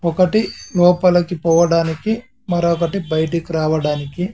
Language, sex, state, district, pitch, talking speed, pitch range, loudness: Telugu, male, Andhra Pradesh, Sri Satya Sai, 170 Hz, 95 wpm, 165-185 Hz, -17 LUFS